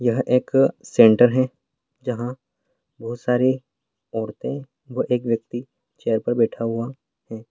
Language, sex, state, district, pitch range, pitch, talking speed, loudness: Hindi, male, Bihar, Bhagalpur, 115-130 Hz, 120 Hz, 130 wpm, -21 LUFS